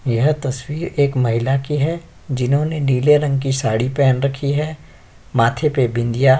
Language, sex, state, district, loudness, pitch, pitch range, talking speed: Hindi, male, Uttar Pradesh, Jyotiba Phule Nagar, -18 LUFS, 135 Hz, 125-150 Hz, 170 wpm